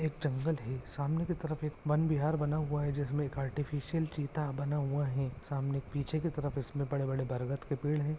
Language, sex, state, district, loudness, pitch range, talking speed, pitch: Hindi, male, Maharashtra, Pune, -35 LUFS, 140-150 Hz, 205 wpm, 145 Hz